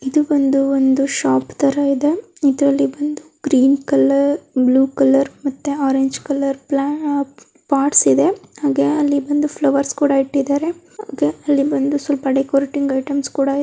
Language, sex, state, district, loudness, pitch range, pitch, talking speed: Kannada, female, Karnataka, Dakshina Kannada, -17 LUFS, 270-290 Hz, 280 Hz, 125 wpm